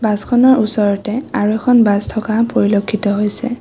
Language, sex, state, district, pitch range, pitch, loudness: Assamese, female, Assam, Kamrup Metropolitan, 205-235 Hz, 215 Hz, -14 LUFS